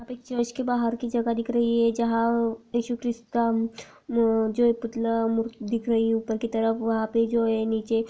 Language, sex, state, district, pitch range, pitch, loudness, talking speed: Hindi, female, Uttar Pradesh, Jyotiba Phule Nagar, 225-235 Hz, 230 Hz, -25 LUFS, 170 wpm